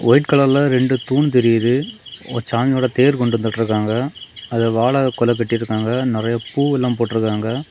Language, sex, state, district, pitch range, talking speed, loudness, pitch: Tamil, male, Tamil Nadu, Kanyakumari, 115-130 Hz, 125 wpm, -17 LUFS, 120 Hz